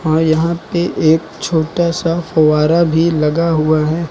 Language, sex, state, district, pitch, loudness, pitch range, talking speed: Hindi, male, Uttar Pradesh, Lucknow, 160 Hz, -14 LUFS, 155-170 Hz, 160 wpm